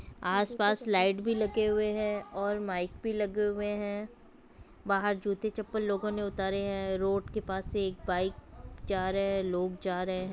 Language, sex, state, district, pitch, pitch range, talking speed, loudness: Hindi, female, Bihar, Sitamarhi, 200 Hz, 190-210 Hz, 190 wpm, -32 LUFS